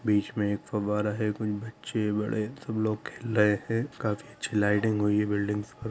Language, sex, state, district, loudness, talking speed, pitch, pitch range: Hindi, male, Bihar, Gaya, -29 LUFS, 205 wpm, 105 Hz, 105-110 Hz